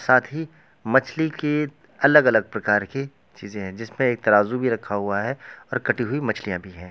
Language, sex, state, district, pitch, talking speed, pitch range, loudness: Hindi, male, Bihar, Gopalganj, 120 Hz, 200 wpm, 105-140 Hz, -22 LUFS